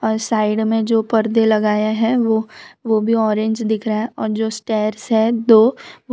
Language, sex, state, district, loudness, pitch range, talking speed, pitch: Hindi, female, Gujarat, Valsad, -17 LUFS, 220-225 Hz, 205 wpm, 220 Hz